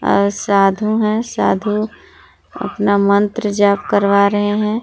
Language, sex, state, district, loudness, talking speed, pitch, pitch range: Hindi, female, Jharkhand, Palamu, -15 LUFS, 125 wpm, 205 Hz, 200-215 Hz